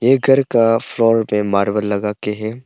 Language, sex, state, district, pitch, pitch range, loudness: Hindi, male, Arunachal Pradesh, Papum Pare, 115 Hz, 105-120 Hz, -16 LUFS